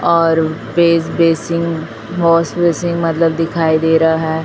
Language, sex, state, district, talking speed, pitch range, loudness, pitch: Hindi, male, Chhattisgarh, Raipur, 135 wpm, 160-170 Hz, -14 LUFS, 165 Hz